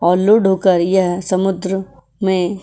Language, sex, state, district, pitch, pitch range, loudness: Hindi, female, Goa, North and South Goa, 190 Hz, 180-195 Hz, -16 LUFS